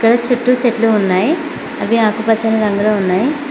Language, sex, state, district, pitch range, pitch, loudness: Telugu, female, Telangana, Mahabubabad, 210-240 Hz, 225 Hz, -14 LUFS